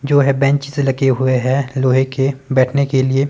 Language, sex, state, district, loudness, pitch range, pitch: Hindi, male, Himachal Pradesh, Shimla, -16 LUFS, 130-140 Hz, 135 Hz